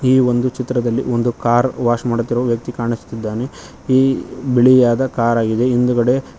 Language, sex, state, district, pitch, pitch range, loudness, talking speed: Kannada, male, Karnataka, Koppal, 120 Hz, 120-125 Hz, -16 LUFS, 130 wpm